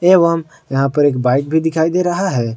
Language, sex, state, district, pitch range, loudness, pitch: Hindi, male, Jharkhand, Ranchi, 135-170 Hz, -15 LUFS, 160 Hz